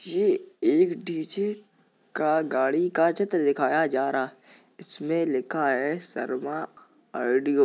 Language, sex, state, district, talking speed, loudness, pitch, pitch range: Hindi, female, Uttar Pradesh, Jalaun, 125 wpm, -26 LUFS, 160 Hz, 140-210 Hz